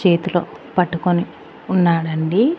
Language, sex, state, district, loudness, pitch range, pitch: Telugu, female, Andhra Pradesh, Annamaya, -19 LUFS, 170-185 Hz, 175 Hz